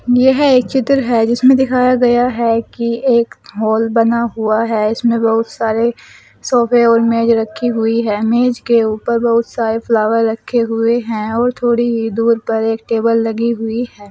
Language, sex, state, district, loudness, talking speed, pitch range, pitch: Hindi, female, Uttar Pradesh, Saharanpur, -14 LUFS, 180 wpm, 225-240 Hz, 230 Hz